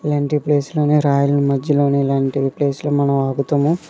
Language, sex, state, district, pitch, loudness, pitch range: Telugu, male, Andhra Pradesh, Visakhapatnam, 145 Hz, -17 LUFS, 140-150 Hz